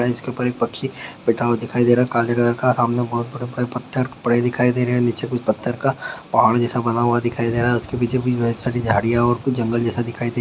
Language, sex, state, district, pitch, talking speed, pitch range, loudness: Hindi, male, Bihar, Sitamarhi, 120 Hz, 265 wpm, 120-125 Hz, -20 LUFS